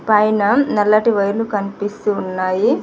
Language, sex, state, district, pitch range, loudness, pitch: Telugu, female, Telangana, Mahabubabad, 200-215 Hz, -17 LUFS, 210 Hz